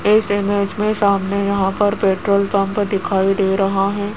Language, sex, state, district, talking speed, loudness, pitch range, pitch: Hindi, female, Rajasthan, Jaipur, 175 wpm, -17 LUFS, 195-205 Hz, 200 Hz